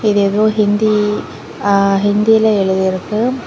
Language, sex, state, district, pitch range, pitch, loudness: Tamil, female, Tamil Nadu, Kanyakumari, 200-215 Hz, 210 Hz, -14 LUFS